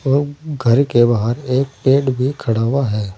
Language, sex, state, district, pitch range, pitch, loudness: Hindi, male, Uttar Pradesh, Saharanpur, 115-140 Hz, 130 Hz, -17 LUFS